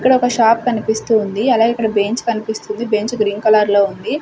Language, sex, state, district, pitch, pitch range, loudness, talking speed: Telugu, female, Andhra Pradesh, Sri Satya Sai, 220 Hz, 210-235 Hz, -16 LUFS, 215 wpm